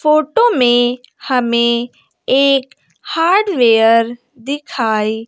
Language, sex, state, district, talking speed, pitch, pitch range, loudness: Hindi, female, Bihar, West Champaran, 80 wpm, 250 Hz, 235-290 Hz, -14 LUFS